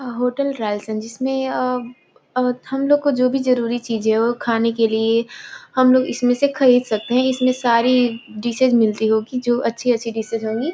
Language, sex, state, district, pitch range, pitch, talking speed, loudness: Hindi, female, Bihar, Gopalganj, 230-255 Hz, 245 Hz, 185 wpm, -19 LUFS